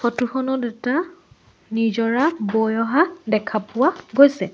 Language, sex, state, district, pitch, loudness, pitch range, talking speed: Assamese, female, Assam, Sonitpur, 240 Hz, -20 LUFS, 220-280 Hz, 120 wpm